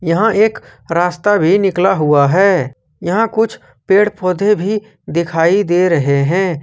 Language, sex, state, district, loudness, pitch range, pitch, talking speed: Hindi, male, Jharkhand, Ranchi, -14 LUFS, 165-205 Hz, 185 Hz, 145 wpm